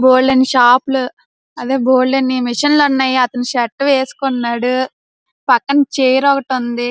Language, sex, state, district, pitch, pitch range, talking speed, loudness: Telugu, female, Andhra Pradesh, Srikakulam, 260 Hz, 250-270 Hz, 120 wpm, -14 LUFS